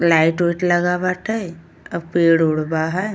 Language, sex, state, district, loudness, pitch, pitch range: Bhojpuri, female, Uttar Pradesh, Ghazipur, -18 LUFS, 170 Hz, 165-180 Hz